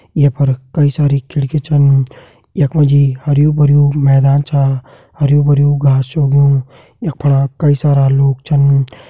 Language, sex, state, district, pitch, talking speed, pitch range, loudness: Hindi, male, Uttarakhand, Tehri Garhwal, 140 Hz, 130 wpm, 135-145 Hz, -12 LUFS